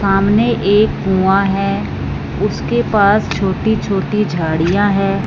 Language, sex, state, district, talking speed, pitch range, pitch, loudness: Hindi, male, Punjab, Fazilka, 105 wpm, 190-205 Hz, 195 Hz, -15 LUFS